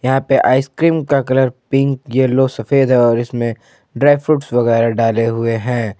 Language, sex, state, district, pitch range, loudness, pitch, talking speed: Hindi, male, Jharkhand, Ranchi, 115-135 Hz, -15 LUFS, 130 Hz, 170 wpm